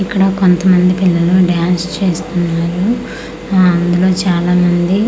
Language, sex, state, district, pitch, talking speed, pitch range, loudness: Telugu, female, Andhra Pradesh, Manyam, 180 Hz, 105 wpm, 175-185 Hz, -13 LUFS